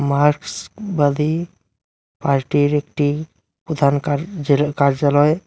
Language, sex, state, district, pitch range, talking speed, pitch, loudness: Bengali, male, West Bengal, Cooch Behar, 140-155 Hz, 65 wpm, 145 Hz, -19 LUFS